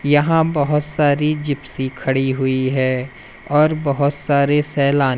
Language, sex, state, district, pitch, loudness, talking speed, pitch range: Hindi, male, Madhya Pradesh, Umaria, 140 Hz, -18 LUFS, 125 wpm, 135-150 Hz